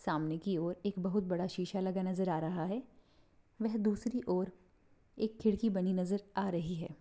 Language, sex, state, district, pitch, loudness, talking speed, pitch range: Hindi, female, Maharashtra, Pune, 190 Hz, -36 LUFS, 190 wpm, 180-210 Hz